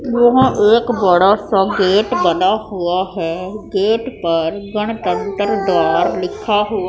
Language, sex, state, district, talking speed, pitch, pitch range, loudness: Hindi, female, Punjab, Pathankot, 120 wpm, 200 Hz, 180-215 Hz, -16 LUFS